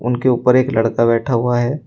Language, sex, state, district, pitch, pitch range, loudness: Hindi, male, Uttar Pradesh, Shamli, 120 Hz, 115-130 Hz, -16 LUFS